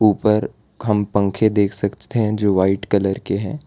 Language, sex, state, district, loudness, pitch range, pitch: Hindi, male, Gujarat, Valsad, -19 LUFS, 100-110 Hz, 105 Hz